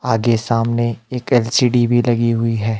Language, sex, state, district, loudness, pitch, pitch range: Hindi, male, Himachal Pradesh, Shimla, -17 LUFS, 115 Hz, 115-120 Hz